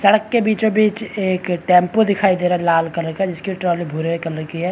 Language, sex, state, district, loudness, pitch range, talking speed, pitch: Hindi, male, Chhattisgarh, Bastar, -18 LUFS, 170-205 Hz, 240 wpm, 180 Hz